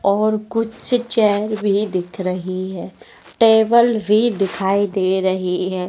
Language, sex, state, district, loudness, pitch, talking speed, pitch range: Hindi, female, Madhya Pradesh, Dhar, -18 LUFS, 200 Hz, 130 wpm, 185-220 Hz